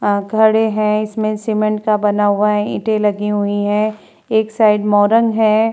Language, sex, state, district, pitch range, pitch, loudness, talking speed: Hindi, female, Uttar Pradesh, Jalaun, 210-220 Hz, 215 Hz, -15 LUFS, 180 wpm